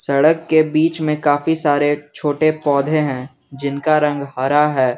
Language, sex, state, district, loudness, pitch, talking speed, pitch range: Hindi, male, Jharkhand, Garhwa, -17 LUFS, 145 Hz, 155 wpm, 140-155 Hz